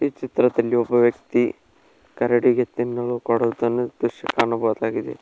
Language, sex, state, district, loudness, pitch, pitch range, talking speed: Kannada, male, Karnataka, Koppal, -21 LUFS, 120 Hz, 115-120 Hz, 105 wpm